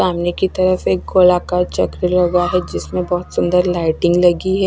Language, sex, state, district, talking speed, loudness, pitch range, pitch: Hindi, female, Odisha, Nuapada, 180 wpm, -16 LUFS, 175-185 Hz, 180 Hz